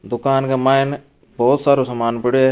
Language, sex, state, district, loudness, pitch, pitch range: Marwari, male, Rajasthan, Churu, -17 LUFS, 130 Hz, 125-135 Hz